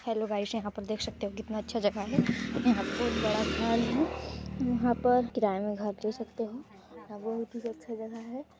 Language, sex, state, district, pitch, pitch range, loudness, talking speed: Hindi, female, Chhattisgarh, Sarguja, 230 Hz, 210-240 Hz, -31 LUFS, 210 wpm